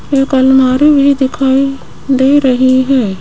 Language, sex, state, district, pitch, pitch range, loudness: Hindi, female, Rajasthan, Jaipur, 265 Hz, 260-275 Hz, -10 LUFS